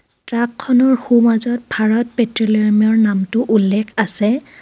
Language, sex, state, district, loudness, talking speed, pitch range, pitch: Assamese, female, Assam, Kamrup Metropolitan, -15 LUFS, 115 wpm, 215-240 Hz, 225 Hz